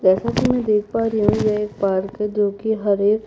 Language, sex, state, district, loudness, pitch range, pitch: Hindi, female, Chhattisgarh, Jashpur, -20 LUFS, 200-220 Hz, 210 Hz